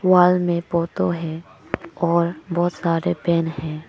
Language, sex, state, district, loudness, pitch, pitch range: Hindi, female, Arunachal Pradesh, Papum Pare, -21 LUFS, 170 Hz, 160-175 Hz